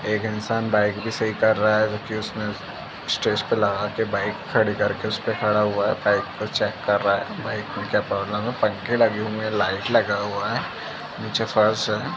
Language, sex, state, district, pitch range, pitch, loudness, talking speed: Hindi, male, Uttar Pradesh, Jalaun, 105-110 Hz, 105 Hz, -23 LUFS, 210 wpm